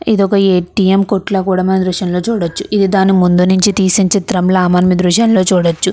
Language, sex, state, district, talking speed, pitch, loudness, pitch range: Telugu, female, Andhra Pradesh, Krishna, 200 wpm, 190 Hz, -12 LUFS, 180-195 Hz